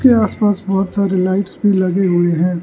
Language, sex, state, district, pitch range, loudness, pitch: Hindi, male, Arunachal Pradesh, Lower Dibang Valley, 185-205 Hz, -15 LUFS, 195 Hz